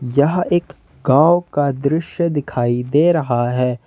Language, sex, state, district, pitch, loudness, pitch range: Hindi, male, Jharkhand, Ranchi, 145 Hz, -17 LUFS, 125-170 Hz